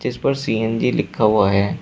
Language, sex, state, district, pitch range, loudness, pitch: Hindi, male, Uttar Pradesh, Shamli, 100-125 Hz, -19 LUFS, 110 Hz